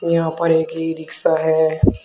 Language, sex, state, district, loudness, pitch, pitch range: Hindi, male, Uttar Pradesh, Shamli, -18 LUFS, 160 Hz, 160-165 Hz